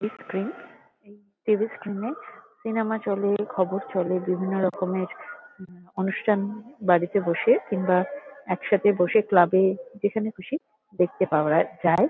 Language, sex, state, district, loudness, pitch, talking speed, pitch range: Bengali, female, West Bengal, North 24 Parganas, -25 LUFS, 200 Hz, 135 wpm, 185-220 Hz